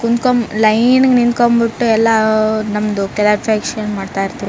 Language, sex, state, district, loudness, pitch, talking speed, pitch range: Kannada, female, Karnataka, Raichur, -14 LUFS, 220 Hz, 135 wpm, 210-235 Hz